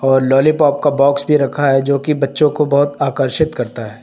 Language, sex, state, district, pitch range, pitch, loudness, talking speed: Hindi, male, Uttar Pradesh, Lucknow, 135-145 Hz, 140 Hz, -14 LUFS, 225 wpm